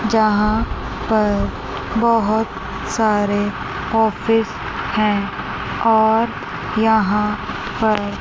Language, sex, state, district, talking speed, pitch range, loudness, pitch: Hindi, female, Chandigarh, Chandigarh, 65 wpm, 205-225 Hz, -19 LUFS, 215 Hz